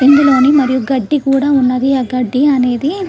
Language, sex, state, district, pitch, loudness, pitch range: Telugu, female, Andhra Pradesh, Krishna, 270 Hz, -12 LUFS, 255-285 Hz